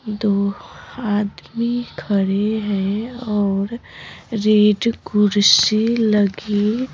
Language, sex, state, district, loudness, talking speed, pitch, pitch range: Hindi, female, Bihar, Patna, -18 LUFS, 70 wpm, 210 Hz, 205-230 Hz